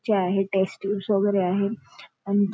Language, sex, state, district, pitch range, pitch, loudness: Marathi, female, Maharashtra, Nagpur, 195-205 Hz, 200 Hz, -24 LUFS